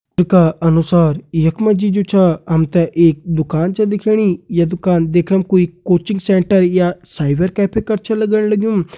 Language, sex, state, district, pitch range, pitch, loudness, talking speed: Hindi, male, Uttarakhand, Uttarkashi, 165-200 Hz, 180 Hz, -15 LUFS, 180 wpm